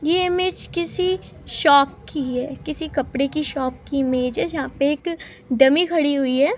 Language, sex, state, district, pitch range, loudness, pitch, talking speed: Hindi, female, Uttar Pradesh, Gorakhpur, 270-330 Hz, -21 LUFS, 285 Hz, 185 wpm